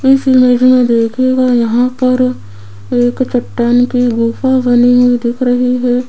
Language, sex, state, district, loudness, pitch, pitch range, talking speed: Hindi, female, Rajasthan, Jaipur, -11 LUFS, 245 Hz, 240-255 Hz, 150 wpm